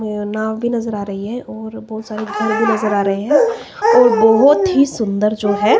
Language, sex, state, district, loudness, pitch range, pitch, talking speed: Hindi, female, Himachal Pradesh, Shimla, -15 LUFS, 205-240 Hz, 220 Hz, 225 wpm